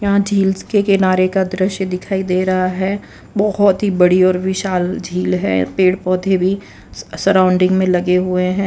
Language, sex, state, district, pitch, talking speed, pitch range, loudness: Hindi, female, Gujarat, Valsad, 185 Hz, 175 wpm, 180-195 Hz, -16 LUFS